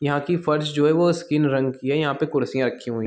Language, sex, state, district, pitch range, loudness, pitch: Hindi, male, Chhattisgarh, Bilaspur, 130-155 Hz, -22 LUFS, 145 Hz